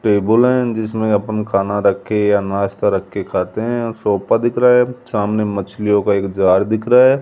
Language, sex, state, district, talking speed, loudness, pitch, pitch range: Hindi, male, Rajasthan, Jaipur, 215 wpm, -16 LUFS, 105 Hz, 100-120 Hz